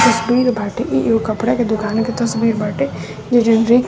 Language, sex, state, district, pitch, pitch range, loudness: Hindi, female, Bihar, West Champaran, 225 Hz, 215-240 Hz, -17 LUFS